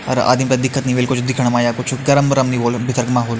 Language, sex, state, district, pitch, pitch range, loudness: Hindi, male, Uttarakhand, Uttarkashi, 125 Hz, 120-130 Hz, -16 LUFS